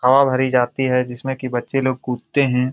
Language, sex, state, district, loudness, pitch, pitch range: Hindi, male, Bihar, Jamui, -19 LUFS, 130 Hz, 125-135 Hz